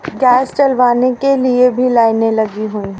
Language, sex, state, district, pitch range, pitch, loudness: Hindi, female, Haryana, Rohtak, 225-255 Hz, 250 Hz, -13 LUFS